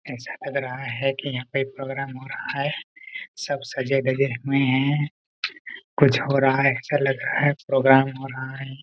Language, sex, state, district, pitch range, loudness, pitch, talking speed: Hindi, male, Jharkhand, Jamtara, 135-140 Hz, -23 LUFS, 135 Hz, 185 wpm